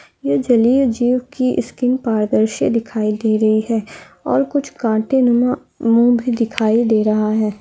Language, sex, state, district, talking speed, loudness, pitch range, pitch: Hindi, female, Andhra Pradesh, Krishna, 140 wpm, -17 LUFS, 215-250 Hz, 230 Hz